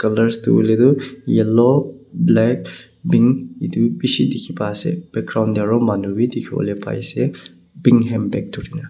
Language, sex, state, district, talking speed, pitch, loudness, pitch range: Nagamese, male, Nagaland, Kohima, 170 wpm, 115 Hz, -18 LUFS, 105-120 Hz